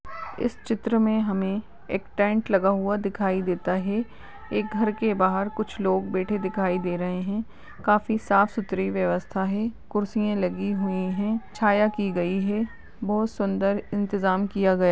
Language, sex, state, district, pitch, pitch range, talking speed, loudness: Hindi, female, Uttar Pradesh, Ghazipur, 200 Hz, 190-215 Hz, 160 wpm, -25 LUFS